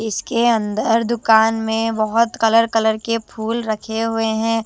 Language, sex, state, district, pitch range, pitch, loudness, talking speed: Hindi, female, Chhattisgarh, Raipur, 220-230 Hz, 225 Hz, -18 LUFS, 155 wpm